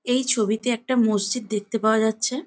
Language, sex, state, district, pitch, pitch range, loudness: Bengali, female, West Bengal, Jhargram, 225 Hz, 215-250 Hz, -22 LUFS